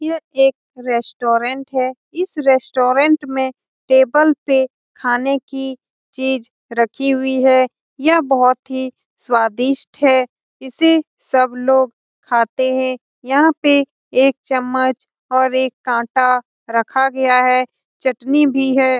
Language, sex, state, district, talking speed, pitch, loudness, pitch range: Hindi, female, Bihar, Lakhisarai, 120 wpm, 260 Hz, -16 LUFS, 255-275 Hz